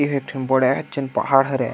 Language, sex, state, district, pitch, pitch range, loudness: Chhattisgarhi, male, Chhattisgarh, Sukma, 135 Hz, 130-140 Hz, -20 LUFS